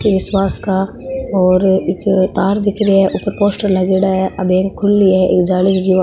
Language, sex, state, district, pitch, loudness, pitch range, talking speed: Marwari, female, Rajasthan, Nagaur, 190 Hz, -14 LUFS, 185-200 Hz, 200 wpm